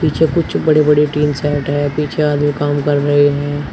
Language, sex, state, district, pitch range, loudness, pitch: Hindi, male, Uttar Pradesh, Shamli, 145-150 Hz, -15 LUFS, 145 Hz